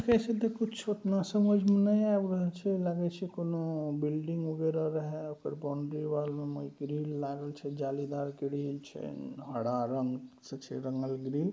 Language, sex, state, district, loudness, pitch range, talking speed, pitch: Maithili, male, Bihar, Saharsa, -33 LUFS, 140-185 Hz, 155 wpm, 150 Hz